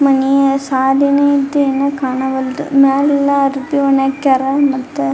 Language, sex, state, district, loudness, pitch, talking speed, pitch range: Kannada, female, Karnataka, Dharwad, -14 LUFS, 275 Hz, 130 wpm, 265-280 Hz